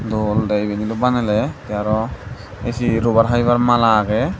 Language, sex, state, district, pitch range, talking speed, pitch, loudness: Chakma, male, Tripura, Dhalai, 105-120 Hz, 150 wpm, 110 Hz, -18 LUFS